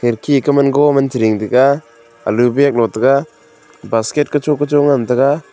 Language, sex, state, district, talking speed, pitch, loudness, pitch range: Wancho, male, Arunachal Pradesh, Longding, 140 wpm, 135 Hz, -14 LUFS, 115-145 Hz